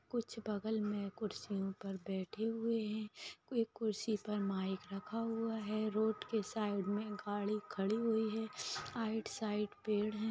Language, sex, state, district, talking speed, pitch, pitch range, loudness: Hindi, female, Bihar, Purnia, 165 wpm, 215 Hz, 205-220 Hz, -40 LUFS